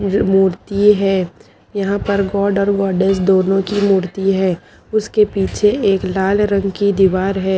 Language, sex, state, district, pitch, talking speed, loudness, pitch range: Hindi, female, Haryana, Charkhi Dadri, 195 Hz, 125 wpm, -16 LUFS, 190-200 Hz